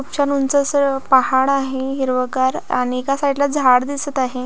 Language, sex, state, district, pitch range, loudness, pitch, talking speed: Marathi, female, Maharashtra, Pune, 260-280 Hz, -18 LUFS, 270 Hz, 190 wpm